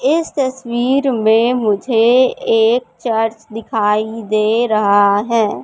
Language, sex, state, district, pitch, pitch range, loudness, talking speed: Hindi, female, Madhya Pradesh, Katni, 225 Hz, 215-260 Hz, -15 LUFS, 105 wpm